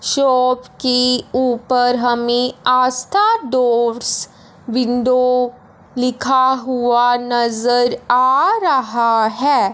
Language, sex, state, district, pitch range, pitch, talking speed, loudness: Hindi, male, Punjab, Fazilka, 245-255 Hz, 250 Hz, 80 wpm, -16 LUFS